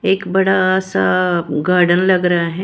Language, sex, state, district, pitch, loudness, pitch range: Hindi, female, Maharashtra, Washim, 185 Hz, -15 LUFS, 175-190 Hz